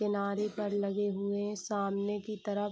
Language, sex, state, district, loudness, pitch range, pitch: Hindi, female, Bihar, Saharsa, -34 LUFS, 200-205 Hz, 205 Hz